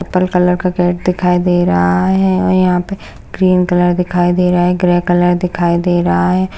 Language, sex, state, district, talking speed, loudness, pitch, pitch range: Hindi, female, Uttarakhand, Uttarkashi, 210 wpm, -13 LUFS, 180 Hz, 175-180 Hz